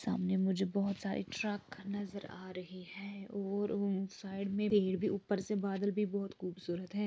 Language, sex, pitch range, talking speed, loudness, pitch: Urdu, female, 190-205 Hz, 185 wpm, -37 LUFS, 200 Hz